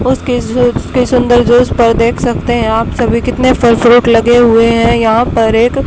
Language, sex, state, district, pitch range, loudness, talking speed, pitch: Hindi, female, Haryana, Charkhi Dadri, 230-245 Hz, -10 LUFS, 205 wpm, 235 Hz